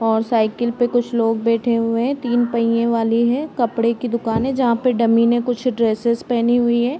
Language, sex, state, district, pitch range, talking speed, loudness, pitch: Hindi, female, Uttar Pradesh, Varanasi, 230-240 Hz, 215 wpm, -18 LUFS, 235 Hz